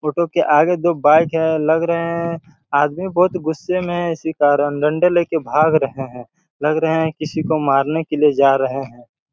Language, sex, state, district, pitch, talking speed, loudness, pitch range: Hindi, male, Chhattisgarh, Raigarh, 160 Hz, 205 wpm, -17 LUFS, 145-170 Hz